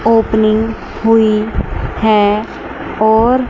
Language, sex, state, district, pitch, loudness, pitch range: Hindi, male, Chandigarh, Chandigarh, 220 Hz, -13 LUFS, 215-225 Hz